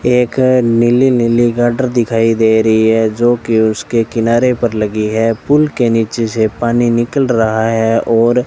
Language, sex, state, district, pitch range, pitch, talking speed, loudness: Hindi, male, Rajasthan, Bikaner, 110-120 Hz, 115 Hz, 175 wpm, -13 LUFS